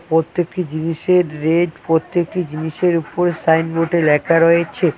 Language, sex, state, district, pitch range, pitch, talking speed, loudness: Bengali, male, West Bengal, Cooch Behar, 160-175 Hz, 165 Hz, 110 wpm, -17 LUFS